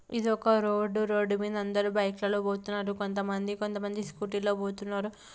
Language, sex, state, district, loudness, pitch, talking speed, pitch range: Telugu, female, Andhra Pradesh, Anantapur, -30 LUFS, 205 Hz, 155 wpm, 205-210 Hz